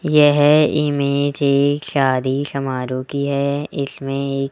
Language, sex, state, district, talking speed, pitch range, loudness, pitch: Hindi, male, Rajasthan, Jaipur, 120 wpm, 135-145 Hz, -18 LUFS, 140 Hz